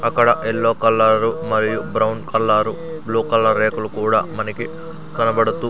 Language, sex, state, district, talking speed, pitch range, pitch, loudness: Telugu, male, Andhra Pradesh, Sri Satya Sai, 125 wpm, 110-115 Hz, 110 Hz, -18 LUFS